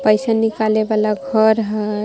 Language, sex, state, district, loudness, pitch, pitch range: Magahi, female, Jharkhand, Palamu, -17 LUFS, 215 Hz, 215-225 Hz